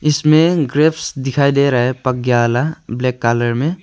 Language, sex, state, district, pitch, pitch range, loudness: Hindi, male, Arunachal Pradesh, Longding, 135 Hz, 120-155 Hz, -15 LUFS